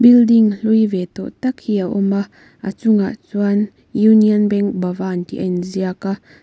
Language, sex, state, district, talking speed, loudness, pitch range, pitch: Mizo, female, Mizoram, Aizawl, 175 wpm, -17 LUFS, 190-220 Hz, 205 Hz